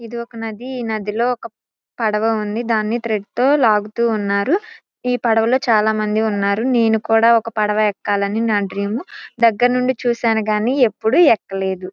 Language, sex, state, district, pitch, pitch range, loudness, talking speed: Telugu, female, Andhra Pradesh, Guntur, 225 Hz, 215-240 Hz, -18 LUFS, 165 wpm